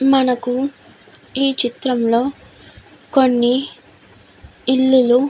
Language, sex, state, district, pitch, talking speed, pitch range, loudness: Telugu, female, Andhra Pradesh, Guntur, 260 Hz, 80 wpm, 245-270 Hz, -17 LUFS